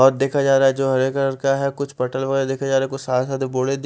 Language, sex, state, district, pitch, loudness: Hindi, male, Punjab, Fazilka, 135 Hz, -20 LUFS